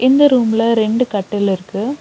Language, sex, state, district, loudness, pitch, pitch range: Tamil, female, Tamil Nadu, Nilgiris, -15 LUFS, 225 Hz, 205-255 Hz